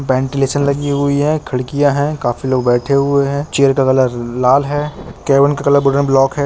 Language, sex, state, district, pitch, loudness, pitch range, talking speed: Hindi, male, Uttar Pradesh, Jalaun, 140 Hz, -14 LUFS, 130-145 Hz, 195 wpm